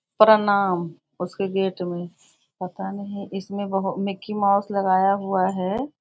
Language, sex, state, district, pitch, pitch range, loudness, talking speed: Hindi, female, Bihar, Muzaffarpur, 195 Hz, 185-200 Hz, -23 LUFS, 140 wpm